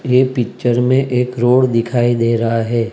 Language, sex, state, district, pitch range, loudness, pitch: Hindi, male, Maharashtra, Mumbai Suburban, 115-125 Hz, -15 LUFS, 120 Hz